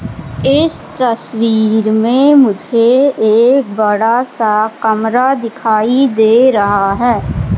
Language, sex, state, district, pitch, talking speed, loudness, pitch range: Hindi, female, Madhya Pradesh, Katni, 230 Hz, 95 wpm, -12 LUFS, 220-255 Hz